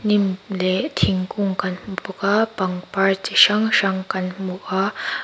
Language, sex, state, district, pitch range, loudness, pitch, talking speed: Mizo, female, Mizoram, Aizawl, 185-200 Hz, -20 LUFS, 195 Hz, 160 wpm